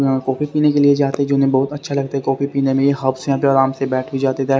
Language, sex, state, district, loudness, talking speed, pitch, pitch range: Hindi, male, Haryana, Rohtak, -17 LUFS, 220 wpm, 135 Hz, 135-140 Hz